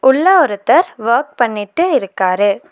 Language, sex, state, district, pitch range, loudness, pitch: Tamil, female, Tamil Nadu, Nilgiris, 205-310 Hz, -14 LUFS, 240 Hz